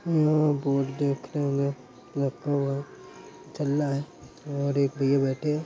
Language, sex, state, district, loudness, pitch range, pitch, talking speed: Hindi, male, Uttar Pradesh, Hamirpur, -27 LUFS, 140-150 Hz, 140 Hz, 95 wpm